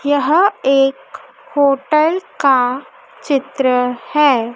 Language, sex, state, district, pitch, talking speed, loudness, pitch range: Hindi, female, Madhya Pradesh, Dhar, 275 Hz, 80 wpm, -15 LUFS, 265-305 Hz